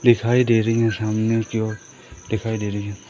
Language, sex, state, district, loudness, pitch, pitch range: Hindi, male, Madhya Pradesh, Umaria, -21 LUFS, 110 Hz, 110-115 Hz